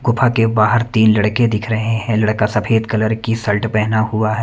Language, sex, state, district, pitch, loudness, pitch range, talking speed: Hindi, male, Himachal Pradesh, Shimla, 110 Hz, -16 LUFS, 110-115 Hz, 215 wpm